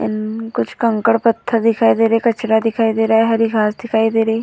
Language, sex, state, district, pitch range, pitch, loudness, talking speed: Hindi, female, Uttar Pradesh, Hamirpur, 220-230 Hz, 225 Hz, -16 LUFS, 205 wpm